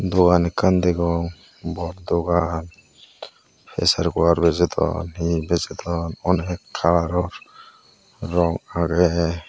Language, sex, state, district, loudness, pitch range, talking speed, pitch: Chakma, male, Tripura, Dhalai, -21 LUFS, 85-90 Hz, 95 wpm, 85 Hz